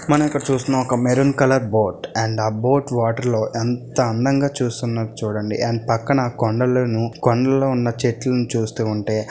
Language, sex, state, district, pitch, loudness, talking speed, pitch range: Telugu, male, Andhra Pradesh, Visakhapatnam, 120 Hz, -20 LUFS, 170 wpm, 115-130 Hz